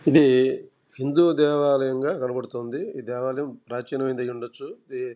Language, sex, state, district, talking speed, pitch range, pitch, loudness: Telugu, male, Andhra Pradesh, Krishna, 95 wpm, 125-170 Hz, 135 Hz, -24 LUFS